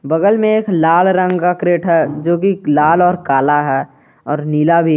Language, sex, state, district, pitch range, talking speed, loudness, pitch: Hindi, male, Jharkhand, Garhwa, 150-180 Hz, 205 wpm, -14 LUFS, 170 Hz